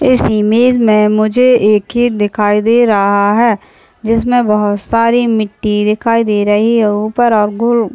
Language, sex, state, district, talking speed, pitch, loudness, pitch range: Hindi, male, Chhattisgarh, Raigarh, 165 wpm, 215 Hz, -11 LUFS, 210-235 Hz